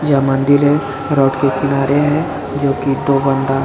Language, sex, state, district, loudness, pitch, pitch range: Hindi, male, Bihar, Jamui, -15 LUFS, 140 Hz, 135-145 Hz